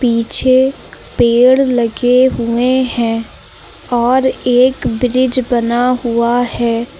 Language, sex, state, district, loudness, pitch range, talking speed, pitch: Hindi, female, Uttar Pradesh, Lucknow, -13 LUFS, 235-255 Hz, 95 wpm, 245 Hz